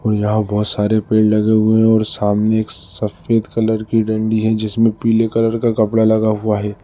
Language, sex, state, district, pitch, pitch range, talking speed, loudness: Hindi, male, Uttar Pradesh, Lalitpur, 110 Hz, 105-110 Hz, 200 wpm, -16 LUFS